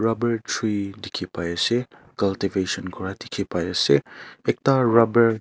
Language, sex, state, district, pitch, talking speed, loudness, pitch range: Nagamese, male, Nagaland, Kohima, 100 Hz, 165 wpm, -23 LUFS, 95-115 Hz